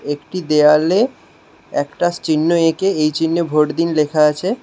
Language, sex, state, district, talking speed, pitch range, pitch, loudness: Bengali, male, West Bengal, Alipurduar, 140 wpm, 150-170 Hz, 160 Hz, -16 LUFS